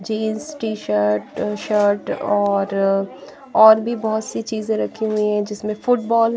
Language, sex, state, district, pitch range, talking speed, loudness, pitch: Hindi, female, Bihar, Patna, 205-225 Hz, 140 wpm, -19 LUFS, 215 Hz